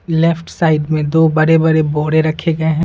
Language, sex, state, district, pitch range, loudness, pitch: Hindi, female, Bihar, Patna, 155-165 Hz, -14 LUFS, 160 Hz